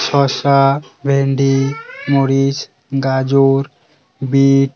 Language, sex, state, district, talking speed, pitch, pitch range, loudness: Bengali, male, West Bengal, Cooch Behar, 75 wpm, 135 Hz, 135-140 Hz, -15 LUFS